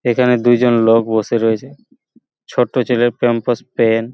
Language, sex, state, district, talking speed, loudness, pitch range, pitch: Bengali, male, West Bengal, Paschim Medinipur, 145 wpm, -15 LUFS, 115-125 Hz, 120 Hz